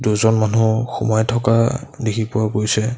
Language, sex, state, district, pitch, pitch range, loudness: Assamese, male, Assam, Sonitpur, 110 Hz, 110-115 Hz, -18 LUFS